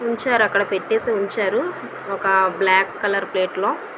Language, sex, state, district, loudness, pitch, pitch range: Telugu, female, Andhra Pradesh, Visakhapatnam, -20 LUFS, 200 Hz, 190-235 Hz